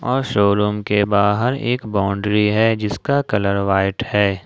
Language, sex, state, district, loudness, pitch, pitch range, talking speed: Hindi, male, Jharkhand, Ranchi, -18 LUFS, 105 Hz, 100-120 Hz, 145 wpm